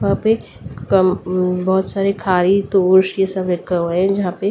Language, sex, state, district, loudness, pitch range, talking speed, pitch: Hindi, female, Delhi, New Delhi, -17 LUFS, 185-195 Hz, 200 wpm, 190 Hz